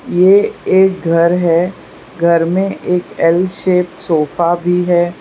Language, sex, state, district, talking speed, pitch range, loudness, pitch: Hindi, female, Gujarat, Valsad, 140 wpm, 170-185 Hz, -13 LUFS, 175 Hz